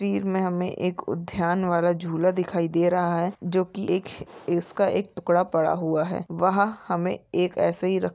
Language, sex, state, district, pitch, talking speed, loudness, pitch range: Hindi, female, Jharkhand, Jamtara, 180 Hz, 190 wpm, -25 LUFS, 170-185 Hz